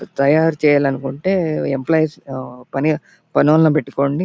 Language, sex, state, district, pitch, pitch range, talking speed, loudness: Telugu, male, Andhra Pradesh, Anantapur, 150 Hz, 135-155 Hz, 100 wpm, -17 LUFS